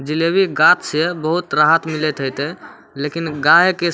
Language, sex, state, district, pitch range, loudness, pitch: Maithili, male, Bihar, Samastipur, 150-170 Hz, -16 LUFS, 160 Hz